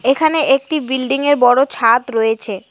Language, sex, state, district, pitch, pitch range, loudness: Bengali, female, West Bengal, Cooch Behar, 260 Hz, 230-280 Hz, -15 LUFS